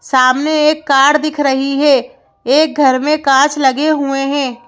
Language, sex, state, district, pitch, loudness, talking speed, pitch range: Hindi, female, Madhya Pradesh, Bhopal, 280 Hz, -12 LUFS, 165 wpm, 270-300 Hz